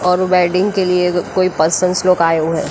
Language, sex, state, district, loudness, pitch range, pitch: Hindi, female, Maharashtra, Mumbai Suburban, -14 LUFS, 175-185 Hz, 180 Hz